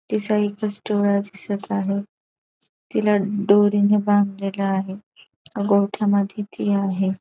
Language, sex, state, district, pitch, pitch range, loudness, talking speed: Marathi, female, Maharashtra, Aurangabad, 205 Hz, 195-205 Hz, -21 LUFS, 110 wpm